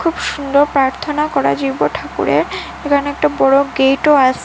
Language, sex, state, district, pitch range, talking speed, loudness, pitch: Bengali, female, Assam, Hailakandi, 265-290 Hz, 150 wpm, -15 LUFS, 275 Hz